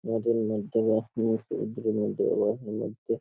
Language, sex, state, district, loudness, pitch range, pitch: Bengali, male, West Bengal, Paschim Medinipur, -28 LUFS, 110-115 Hz, 110 Hz